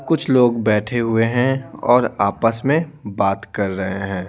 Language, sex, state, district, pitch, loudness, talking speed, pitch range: Hindi, male, Bihar, Patna, 115 Hz, -18 LUFS, 165 wpm, 100-130 Hz